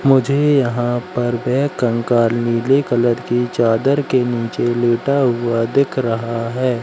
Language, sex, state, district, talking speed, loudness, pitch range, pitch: Hindi, male, Madhya Pradesh, Katni, 140 wpm, -17 LUFS, 120-135 Hz, 120 Hz